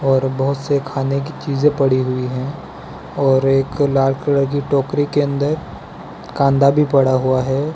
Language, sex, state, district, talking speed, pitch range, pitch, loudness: Hindi, male, Gujarat, Valsad, 170 wpm, 135-145 Hz, 140 Hz, -17 LUFS